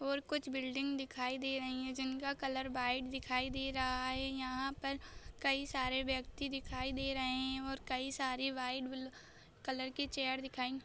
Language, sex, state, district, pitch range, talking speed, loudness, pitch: Hindi, female, Maharashtra, Dhule, 260-270 Hz, 175 wpm, -39 LUFS, 265 Hz